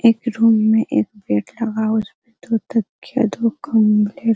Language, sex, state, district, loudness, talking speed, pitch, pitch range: Hindi, female, Bihar, Araria, -18 LUFS, 195 wpm, 225 Hz, 215-230 Hz